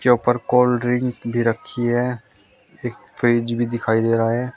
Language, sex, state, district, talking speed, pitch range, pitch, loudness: Hindi, male, Uttar Pradesh, Shamli, 170 wpm, 115-125 Hz, 120 Hz, -20 LUFS